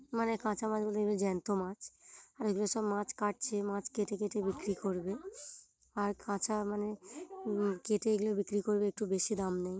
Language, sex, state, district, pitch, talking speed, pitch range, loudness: Bengali, female, West Bengal, Jhargram, 205 Hz, 175 wpm, 200-215 Hz, -35 LUFS